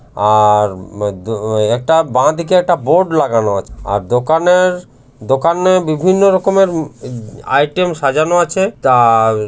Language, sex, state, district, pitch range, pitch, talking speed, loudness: Bengali, male, West Bengal, Jhargram, 110-175 Hz, 135 Hz, 120 wpm, -13 LUFS